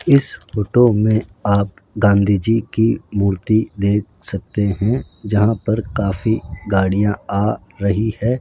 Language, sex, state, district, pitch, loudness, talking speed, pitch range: Hindi, male, Rajasthan, Jaipur, 105 Hz, -18 LUFS, 130 wpm, 100-110 Hz